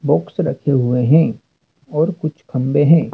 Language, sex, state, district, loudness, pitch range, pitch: Hindi, male, Madhya Pradesh, Dhar, -17 LUFS, 135-160 Hz, 150 Hz